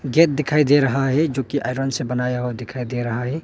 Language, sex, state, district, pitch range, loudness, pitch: Hindi, male, Arunachal Pradesh, Longding, 125-150 Hz, -20 LUFS, 135 Hz